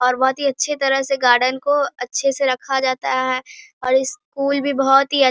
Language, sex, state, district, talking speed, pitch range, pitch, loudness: Hindi, female, Bihar, Bhagalpur, 225 wpm, 260-280 Hz, 270 Hz, -18 LUFS